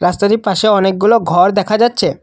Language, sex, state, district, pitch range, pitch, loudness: Bengali, male, Assam, Kamrup Metropolitan, 190-215 Hz, 205 Hz, -12 LUFS